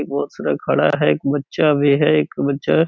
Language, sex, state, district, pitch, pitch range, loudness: Hindi, male, Bihar, Purnia, 145 Hz, 140-155 Hz, -18 LUFS